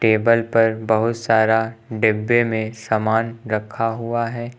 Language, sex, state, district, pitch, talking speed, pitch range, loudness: Hindi, male, Uttar Pradesh, Lucknow, 115 Hz, 130 wpm, 110-115 Hz, -19 LUFS